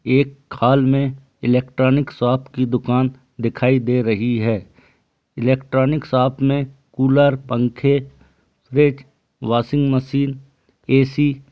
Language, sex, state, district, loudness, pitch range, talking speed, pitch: Hindi, male, Bihar, Gaya, -18 LUFS, 125-140 Hz, 110 wpm, 130 Hz